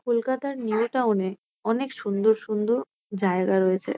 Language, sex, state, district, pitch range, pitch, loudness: Bengali, female, West Bengal, North 24 Parganas, 195-235 Hz, 220 Hz, -25 LUFS